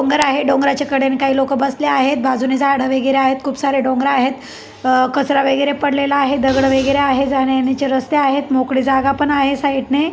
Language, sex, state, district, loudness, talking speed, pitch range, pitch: Marathi, male, Maharashtra, Pune, -16 LUFS, 195 wpm, 265-280 Hz, 275 Hz